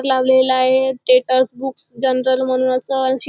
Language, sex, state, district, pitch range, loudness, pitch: Marathi, female, Maharashtra, Chandrapur, 255-265 Hz, -16 LUFS, 260 Hz